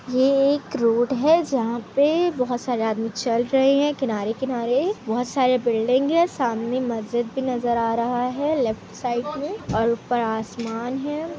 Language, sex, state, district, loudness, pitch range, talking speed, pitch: Hindi, female, Bihar, Kishanganj, -22 LUFS, 230-275 Hz, 165 wpm, 245 Hz